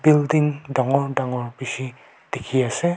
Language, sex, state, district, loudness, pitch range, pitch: Nagamese, male, Nagaland, Kohima, -22 LUFS, 130-150 Hz, 135 Hz